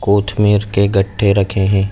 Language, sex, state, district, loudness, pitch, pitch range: Hindi, male, Chhattisgarh, Bilaspur, -14 LUFS, 100 Hz, 100-105 Hz